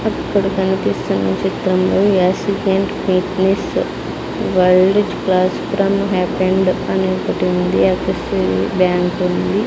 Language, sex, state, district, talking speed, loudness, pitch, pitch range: Telugu, female, Andhra Pradesh, Sri Satya Sai, 110 wpm, -16 LUFS, 185 Hz, 180-195 Hz